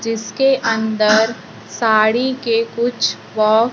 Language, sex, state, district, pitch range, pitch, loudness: Hindi, female, Maharashtra, Gondia, 220-235 Hz, 225 Hz, -16 LUFS